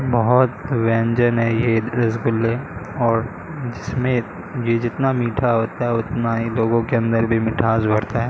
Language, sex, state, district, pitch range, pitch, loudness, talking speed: Hindi, male, Bihar, Katihar, 115-120 Hz, 115 Hz, -20 LUFS, 150 wpm